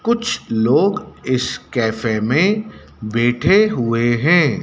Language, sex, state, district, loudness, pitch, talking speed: Hindi, male, Madhya Pradesh, Dhar, -17 LUFS, 130 Hz, 105 wpm